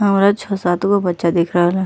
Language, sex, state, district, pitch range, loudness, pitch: Bhojpuri, female, Uttar Pradesh, Ghazipur, 175-200 Hz, -16 LUFS, 190 Hz